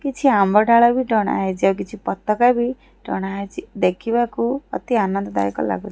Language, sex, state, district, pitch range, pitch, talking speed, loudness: Odia, female, Odisha, Khordha, 195-245 Hz, 220 Hz, 180 wpm, -19 LUFS